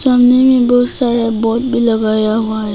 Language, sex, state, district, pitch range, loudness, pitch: Hindi, female, Arunachal Pradesh, Papum Pare, 220-250 Hz, -12 LUFS, 235 Hz